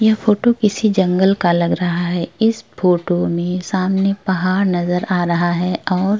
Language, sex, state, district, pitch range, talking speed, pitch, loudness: Hindi, female, Uttar Pradesh, Budaun, 175-200 Hz, 185 wpm, 185 Hz, -17 LUFS